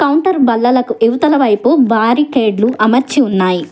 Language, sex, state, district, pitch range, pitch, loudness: Telugu, female, Telangana, Hyderabad, 220-280 Hz, 245 Hz, -12 LUFS